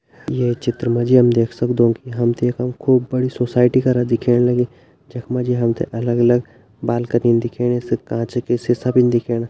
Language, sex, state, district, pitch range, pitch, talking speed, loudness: Hindi, male, Uttarakhand, Tehri Garhwal, 120-125 Hz, 120 Hz, 195 wpm, -18 LUFS